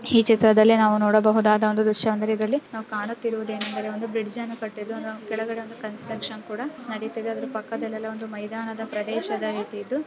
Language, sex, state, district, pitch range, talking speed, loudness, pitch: Kannada, female, Karnataka, Raichur, 215-225 Hz, 90 wpm, -24 LUFS, 220 Hz